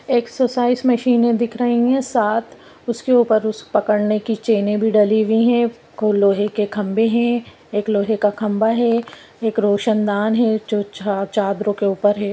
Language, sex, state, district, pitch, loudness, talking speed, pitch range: Hindi, female, Jharkhand, Jamtara, 220 Hz, -18 LUFS, 140 wpm, 210-235 Hz